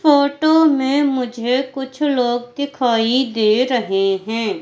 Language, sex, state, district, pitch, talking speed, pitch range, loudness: Hindi, female, Madhya Pradesh, Katni, 255 Hz, 115 wpm, 230-285 Hz, -17 LUFS